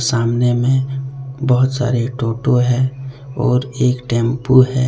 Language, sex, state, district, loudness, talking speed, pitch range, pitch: Hindi, male, Jharkhand, Deoghar, -17 LUFS, 125 wpm, 125-130 Hz, 125 Hz